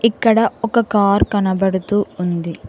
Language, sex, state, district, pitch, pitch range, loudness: Telugu, female, Telangana, Mahabubabad, 205 Hz, 190-225 Hz, -17 LUFS